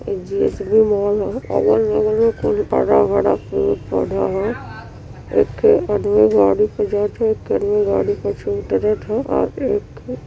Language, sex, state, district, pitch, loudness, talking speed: Awadhi, female, Uttar Pradesh, Varanasi, 215 Hz, -18 LUFS, 185 wpm